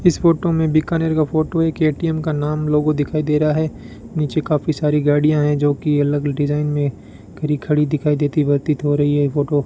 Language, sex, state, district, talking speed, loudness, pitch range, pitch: Hindi, male, Rajasthan, Bikaner, 230 wpm, -18 LUFS, 145-155 Hz, 150 Hz